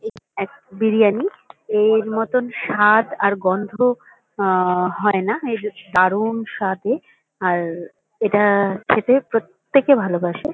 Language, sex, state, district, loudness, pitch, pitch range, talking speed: Bengali, female, West Bengal, Kolkata, -19 LUFS, 210 Hz, 190-230 Hz, 100 wpm